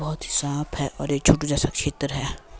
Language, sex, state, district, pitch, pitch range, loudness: Hindi, male, Himachal Pradesh, Shimla, 145 Hz, 135-145 Hz, -24 LUFS